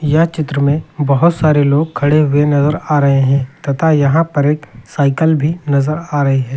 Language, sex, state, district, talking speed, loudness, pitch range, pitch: Hindi, male, Uttar Pradesh, Lucknow, 190 wpm, -14 LUFS, 140-155 Hz, 145 Hz